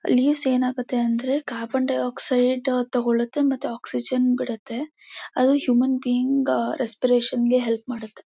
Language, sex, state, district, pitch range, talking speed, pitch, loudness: Kannada, female, Karnataka, Mysore, 240-260 Hz, 125 wpm, 250 Hz, -22 LUFS